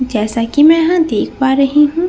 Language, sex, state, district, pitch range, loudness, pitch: Hindi, female, Bihar, Katihar, 255-325 Hz, -12 LUFS, 290 Hz